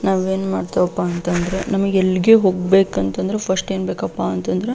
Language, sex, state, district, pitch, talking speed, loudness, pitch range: Kannada, female, Karnataka, Belgaum, 190 Hz, 150 wpm, -18 LUFS, 175-195 Hz